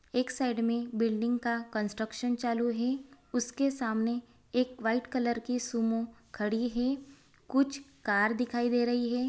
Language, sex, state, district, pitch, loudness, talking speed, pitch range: Hindi, female, Bihar, Saran, 240 Hz, -31 LUFS, 160 wpm, 230-250 Hz